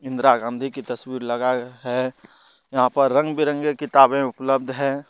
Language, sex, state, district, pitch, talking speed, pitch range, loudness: Hindi, male, Jharkhand, Deoghar, 130 Hz, 165 wpm, 125-140 Hz, -21 LUFS